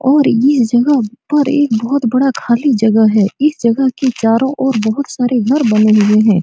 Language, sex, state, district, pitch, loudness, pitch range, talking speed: Hindi, female, Bihar, Supaul, 250 Hz, -13 LUFS, 220-270 Hz, 205 wpm